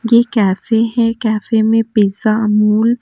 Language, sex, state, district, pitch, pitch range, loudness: Hindi, female, Haryana, Jhajjar, 225 Hz, 210-230 Hz, -14 LUFS